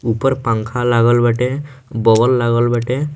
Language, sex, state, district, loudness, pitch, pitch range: Bhojpuri, male, Bihar, Muzaffarpur, -15 LUFS, 120 Hz, 115-130 Hz